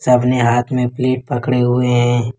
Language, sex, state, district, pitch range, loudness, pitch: Hindi, male, Jharkhand, Ranchi, 120-125 Hz, -16 LUFS, 125 Hz